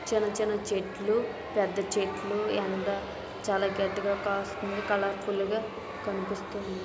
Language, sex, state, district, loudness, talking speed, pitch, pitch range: Telugu, female, Andhra Pradesh, Visakhapatnam, -31 LUFS, 85 wpm, 205 Hz, 195-210 Hz